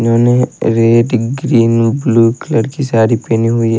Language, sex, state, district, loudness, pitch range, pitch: Hindi, male, Haryana, Rohtak, -12 LUFS, 115-125 Hz, 115 Hz